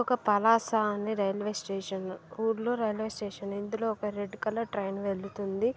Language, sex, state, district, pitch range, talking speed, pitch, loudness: Telugu, female, Andhra Pradesh, Srikakulam, 200-225 Hz, 145 wpm, 210 Hz, -31 LUFS